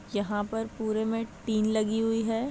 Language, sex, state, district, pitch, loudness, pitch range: Hindi, female, Bihar, Madhepura, 220 Hz, -29 LUFS, 215-225 Hz